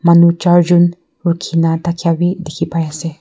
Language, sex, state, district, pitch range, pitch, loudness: Nagamese, female, Nagaland, Kohima, 165-175 Hz, 170 Hz, -14 LUFS